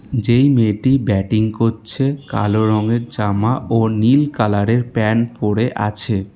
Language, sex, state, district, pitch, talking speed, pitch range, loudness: Bengali, male, West Bengal, Alipurduar, 115 Hz, 125 wpm, 105-120 Hz, -17 LUFS